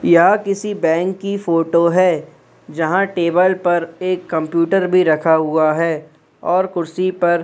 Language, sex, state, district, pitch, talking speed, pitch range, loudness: Hindi, male, Madhya Pradesh, Bhopal, 170 Hz, 145 wpm, 165-185 Hz, -16 LUFS